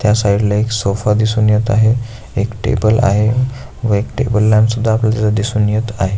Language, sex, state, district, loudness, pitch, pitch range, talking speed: Marathi, male, Maharashtra, Aurangabad, -15 LUFS, 110 Hz, 105-115 Hz, 185 wpm